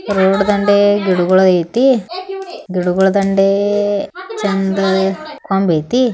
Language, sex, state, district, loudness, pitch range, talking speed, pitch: Kannada, female, Karnataka, Belgaum, -14 LUFS, 190-240 Hz, 100 wpm, 200 Hz